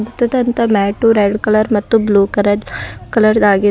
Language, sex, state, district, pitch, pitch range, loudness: Kannada, female, Karnataka, Bidar, 215 Hz, 205-225 Hz, -13 LUFS